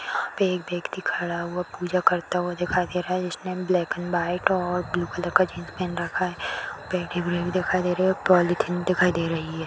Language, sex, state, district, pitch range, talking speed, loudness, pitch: Hindi, female, Maharashtra, Chandrapur, 175-185 Hz, 200 wpm, -25 LUFS, 180 Hz